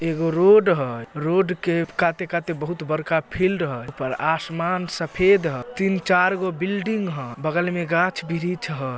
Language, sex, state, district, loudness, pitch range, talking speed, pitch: Magahi, male, Bihar, Samastipur, -22 LUFS, 155-185 Hz, 140 wpm, 170 Hz